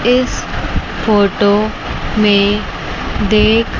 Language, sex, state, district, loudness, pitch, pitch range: Hindi, male, Chandigarh, Chandigarh, -14 LUFS, 210 Hz, 205-220 Hz